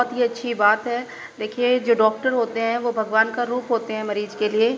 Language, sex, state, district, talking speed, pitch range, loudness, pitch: Hindi, female, Uttar Pradesh, Muzaffarnagar, 225 wpm, 220-245 Hz, -21 LUFS, 235 Hz